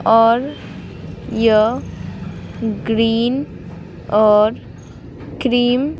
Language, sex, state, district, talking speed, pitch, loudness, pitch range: Hindi, female, Bihar, Patna, 60 wpm, 225 Hz, -16 LUFS, 220-245 Hz